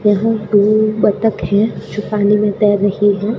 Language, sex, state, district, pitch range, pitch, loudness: Hindi, female, Rajasthan, Bikaner, 205-215 Hz, 210 Hz, -14 LUFS